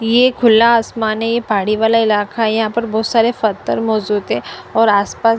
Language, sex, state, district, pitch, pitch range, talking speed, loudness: Hindi, female, Punjab, Fazilka, 225 Hz, 215-230 Hz, 200 wpm, -15 LUFS